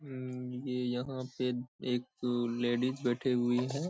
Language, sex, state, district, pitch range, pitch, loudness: Hindi, male, Bihar, Saharsa, 125-130 Hz, 125 Hz, -34 LUFS